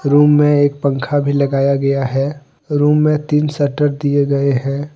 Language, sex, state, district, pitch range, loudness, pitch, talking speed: Hindi, male, Jharkhand, Deoghar, 140-150 Hz, -15 LUFS, 145 Hz, 180 wpm